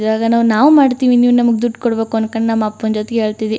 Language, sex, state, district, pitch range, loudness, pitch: Kannada, female, Karnataka, Chamarajanagar, 220-240 Hz, -14 LUFS, 225 Hz